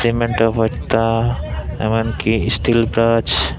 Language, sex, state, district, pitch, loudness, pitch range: Chakma, male, Tripura, Dhalai, 115 Hz, -17 LUFS, 110-115 Hz